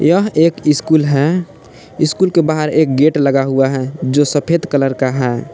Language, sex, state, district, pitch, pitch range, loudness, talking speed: Hindi, male, Jharkhand, Palamu, 150 Hz, 135-160 Hz, -14 LUFS, 185 wpm